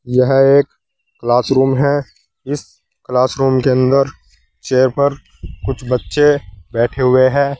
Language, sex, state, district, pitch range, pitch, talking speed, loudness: Hindi, male, Uttar Pradesh, Saharanpur, 120-140 Hz, 130 Hz, 125 wpm, -15 LUFS